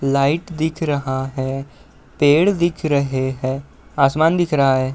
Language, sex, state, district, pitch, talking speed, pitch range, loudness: Hindi, male, Uttar Pradesh, Budaun, 140 Hz, 145 wpm, 135-160 Hz, -19 LUFS